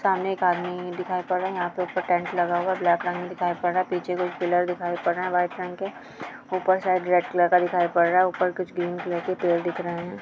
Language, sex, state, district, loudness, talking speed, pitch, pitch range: Hindi, female, Chhattisgarh, Bilaspur, -25 LUFS, 280 wpm, 180 Hz, 175-185 Hz